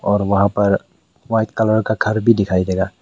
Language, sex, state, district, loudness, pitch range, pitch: Hindi, male, Meghalaya, West Garo Hills, -17 LUFS, 95-110 Hz, 100 Hz